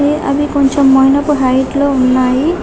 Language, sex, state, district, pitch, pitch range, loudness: Telugu, female, Telangana, Karimnagar, 280 Hz, 265-290 Hz, -11 LUFS